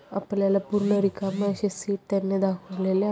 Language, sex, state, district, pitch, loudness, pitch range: Marathi, female, Maharashtra, Chandrapur, 195 Hz, -26 LUFS, 195-205 Hz